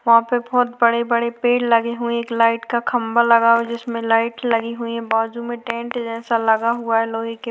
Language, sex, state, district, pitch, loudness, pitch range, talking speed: Hindi, female, Chhattisgarh, Korba, 235 Hz, -19 LUFS, 230-235 Hz, 215 wpm